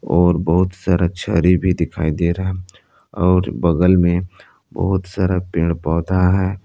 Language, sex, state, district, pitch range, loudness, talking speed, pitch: Hindi, male, Jharkhand, Palamu, 85-95 Hz, -17 LUFS, 155 wpm, 90 Hz